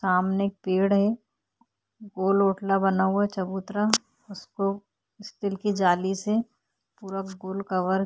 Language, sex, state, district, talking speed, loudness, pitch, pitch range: Hindi, female, Uttarakhand, Tehri Garhwal, 125 wpm, -26 LUFS, 195 Hz, 190-205 Hz